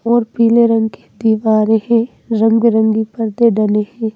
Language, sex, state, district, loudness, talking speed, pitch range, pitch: Hindi, female, Madhya Pradesh, Bhopal, -14 LUFS, 145 wpm, 220-230 Hz, 225 Hz